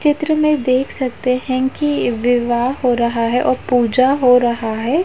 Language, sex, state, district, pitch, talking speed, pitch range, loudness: Hindi, female, Uttar Pradesh, Jalaun, 255 Hz, 180 wpm, 240-275 Hz, -16 LUFS